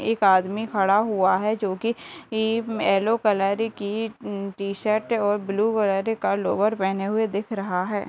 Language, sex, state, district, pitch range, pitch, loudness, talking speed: Hindi, female, Bihar, Gopalganj, 195-220 Hz, 210 Hz, -23 LUFS, 165 wpm